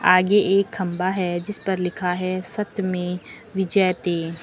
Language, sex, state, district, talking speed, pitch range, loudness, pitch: Hindi, female, Uttar Pradesh, Lucknow, 135 wpm, 180-195 Hz, -22 LUFS, 185 Hz